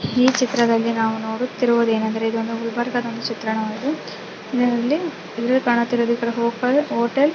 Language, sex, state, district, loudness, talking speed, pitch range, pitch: Kannada, female, Karnataka, Gulbarga, -21 LUFS, 120 wpm, 230-250 Hz, 235 Hz